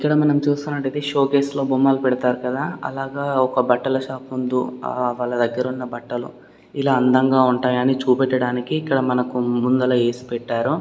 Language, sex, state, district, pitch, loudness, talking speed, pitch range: Telugu, male, Karnataka, Gulbarga, 130 Hz, -20 LUFS, 140 wpm, 125-135 Hz